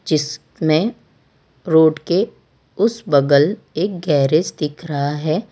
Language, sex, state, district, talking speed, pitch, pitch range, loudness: Hindi, female, Gujarat, Valsad, 110 wpm, 160 Hz, 150-185 Hz, -18 LUFS